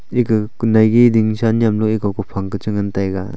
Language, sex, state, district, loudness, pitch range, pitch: Wancho, male, Arunachal Pradesh, Longding, -16 LUFS, 100-115 Hz, 110 Hz